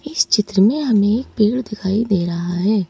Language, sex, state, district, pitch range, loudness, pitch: Hindi, female, Madhya Pradesh, Bhopal, 195-235 Hz, -17 LUFS, 210 Hz